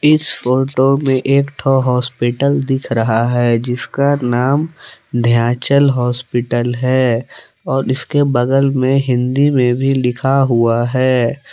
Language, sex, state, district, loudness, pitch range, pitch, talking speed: Hindi, male, Jharkhand, Palamu, -15 LUFS, 120-135 Hz, 130 Hz, 125 wpm